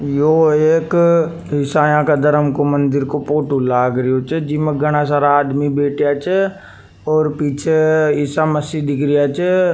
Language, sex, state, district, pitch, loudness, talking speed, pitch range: Rajasthani, male, Rajasthan, Nagaur, 150 Hz, -16 LUFS, 160 wpm, 145-155 Hz